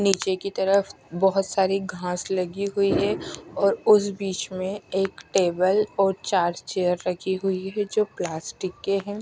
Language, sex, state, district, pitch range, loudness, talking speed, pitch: Hindi, female, Punjab, Kapurthala, 185-200 Hz, -24 LUFS, 155 wpm, 190 Hz